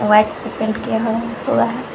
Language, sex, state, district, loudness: Hindi, female, Jharkhand, Garhwa, -19 LUFS